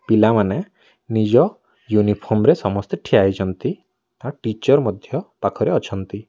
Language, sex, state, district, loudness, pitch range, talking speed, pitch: Odia, male, Odisha, Nuapada, -19 LUFS, 100-115 Hz, 115 wpm, 110 Hz